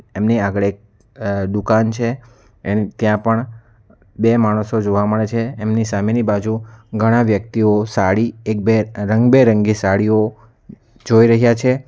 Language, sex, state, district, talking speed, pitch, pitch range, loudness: Gujarati, male, Gujarat, Valsad, 130 wpm, 110 Hz, 105-115 Hz, -16 LUFS